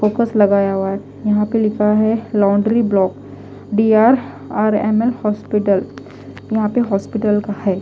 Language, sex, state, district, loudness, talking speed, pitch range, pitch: Hindi, female, Delhi, New Delhi, -16 LUFS, 140 wpm, 200-220 Hz, 210 Hz